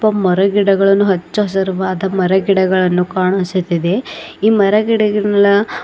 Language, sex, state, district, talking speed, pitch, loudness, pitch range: Kannada, female, Karnataka, Bidar, 115 wpm, 195 Hz, -14 LUFS, 185-205 Hz